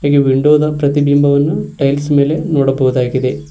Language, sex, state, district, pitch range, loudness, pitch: Kannada, male, Karnataka, Koppal, 135-145 Hz, -13 LUFS, 140 Hz